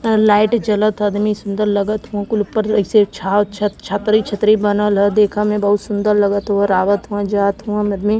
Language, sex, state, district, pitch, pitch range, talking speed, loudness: Hindi, male, Uttar Pradesh, Varanasi, 205 Hz, 205-210 Hz, 200 wpm, -16 LUFS